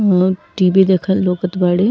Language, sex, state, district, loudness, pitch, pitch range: Bhojpuri, female, Uttar Pradesh, Ghazipur, -15 LUFS, 185 Hz, 180-190 Hz